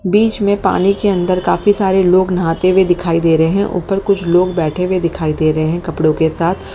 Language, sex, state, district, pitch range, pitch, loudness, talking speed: Hindi, female, Haryana, Jhajjar, 165-195 Hz, 180 Hz, -14 LUFS, 230 wpm